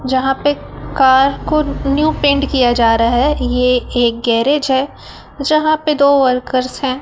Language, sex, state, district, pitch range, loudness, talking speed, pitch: Hindi, male, Chhattisgarh, Raipur, 250-285 Hz, -14 LUFS, 165 wpm, 265 Hz